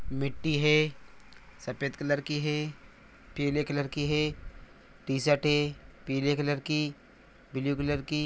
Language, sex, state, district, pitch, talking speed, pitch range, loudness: Hindi, male, Chhattisgarh, Bilaspur, 145 Hz, 130 wpm, 140-150 Hz, -30 LUFS